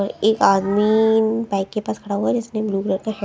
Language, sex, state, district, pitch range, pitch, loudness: Hindi, female, Punjab, Kapurthala, 200-220 Hz, 210 Hz, -19 LUFS